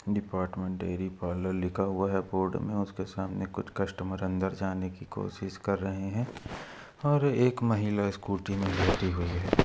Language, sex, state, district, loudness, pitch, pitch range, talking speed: Hindi, male, Chhattisgarh, Korba, -31 LUFS, 95 Hz, 95-100 Hz, 170 wpm